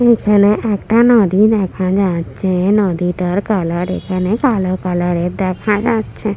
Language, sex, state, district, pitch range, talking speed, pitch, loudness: Bengali, female, West Bengal, Purulia, 180-215 Hz, 120 wpm, 195 Hz, -15 LUFS